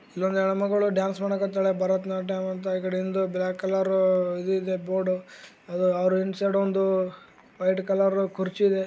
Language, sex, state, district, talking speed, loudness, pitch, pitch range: Kannada, male, Karnataka, Gulbarga, 150 wpm, -26 LUFS, 190 Hz, 185-195 Hz